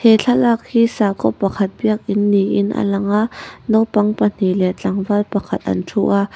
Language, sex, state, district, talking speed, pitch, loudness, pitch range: Mizo, female, Mizoram, Aizawl, 170 wpm, 205 Hz, -17 LUFS, 195-220 Hz